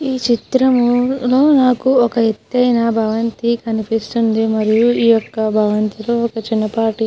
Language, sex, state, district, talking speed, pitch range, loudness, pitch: Telugu, female, Andhra Pradesh, Krishna, 125 wpm, 220-245 Hz, -15 LUFS, 230 Hz